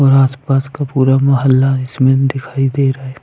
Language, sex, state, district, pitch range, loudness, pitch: Hindi, male, Punjab, Fazilka, 130-135 Hz, -14 LUFS, 135 Hz